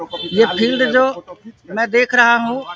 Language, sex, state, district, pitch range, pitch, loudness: Hindi, male, Bihar, Vaishali, 180-245 Hz, 230 Hz, -15 LUFS